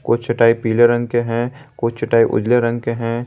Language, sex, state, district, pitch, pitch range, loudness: Hindi, male, Jharkhand, Garhwa, 115 Hz, 115-120 Hz, -17 LUFS